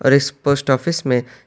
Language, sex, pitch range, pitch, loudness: Urdu, male, 130-140 Hz, 135 Hz, -18 LUFS